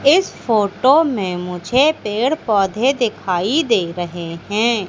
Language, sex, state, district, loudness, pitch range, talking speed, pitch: Hindi, female, Madhya Pradesh, Katni, -17 LUFS, 180-265 Hz, 125 wpm, 215 Hz